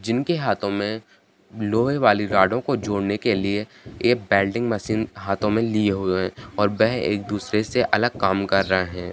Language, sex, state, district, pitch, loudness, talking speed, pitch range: Hindi, male, Bihar, Kishanganj, 105 Hz, -22 LUFS, 185 wpm, 100-115 Hz